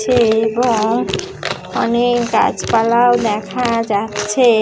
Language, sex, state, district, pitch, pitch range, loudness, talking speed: Bengali, female, West Bengal, Jhargram, 230 Hz, 220-240 Hz, -16 LUFS, 90 wpm